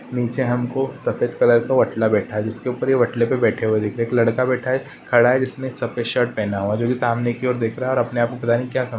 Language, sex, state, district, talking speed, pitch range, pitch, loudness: Hindi, male, Uttar Pradesh, Ghazipur, 305 wpm, 115-125 Hz, 120 Hz, -20 LUFS